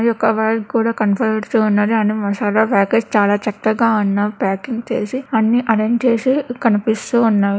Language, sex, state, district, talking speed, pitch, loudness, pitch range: Telugu, female, Andhra Pradesh, Krishna, 135 wpm, 220 Hz, -17 LUFS, 210-230 Hz